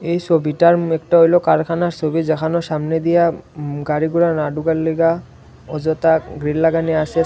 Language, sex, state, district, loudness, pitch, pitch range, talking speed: Bengali, male, Tripura, Unakoti, -17 LUFS, 160 Hz, 155-165 Hz, 140 wpm